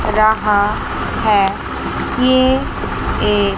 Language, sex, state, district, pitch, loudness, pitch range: Hindi, female, Chandigarh, Chandigarh, 215 Hz, -16 LUFS, 205-245 Hz